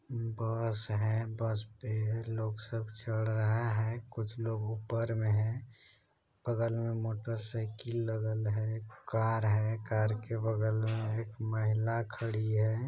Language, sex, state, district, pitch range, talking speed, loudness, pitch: Hindi, male, Bihar, Supaul, 110-115 Hz, 160 wpm, -34 LUFS, 110 Hz